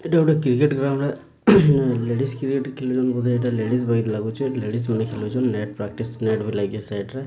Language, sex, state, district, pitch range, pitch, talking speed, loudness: Odia, male, Odisha, Sambalpur, 110-135 Hz, 125 Hz, 125 wpm, -22 LUFS